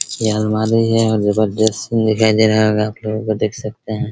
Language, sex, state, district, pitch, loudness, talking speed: Hindi, male, Bihar, Araria, 110 Hz, -16 LUFS, 220 wpm